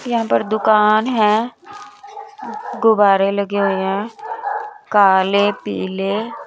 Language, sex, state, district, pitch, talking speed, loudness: Hindi, female, Bihar, West Champaran, 215 Hz, 95 wpm, -17 LUFS